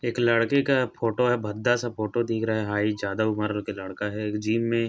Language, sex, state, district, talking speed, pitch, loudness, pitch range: Hindi, male, Chhattisgarh, Korba, 220 wpm, 110 Hz, -26 LUFS, 105-120 Hz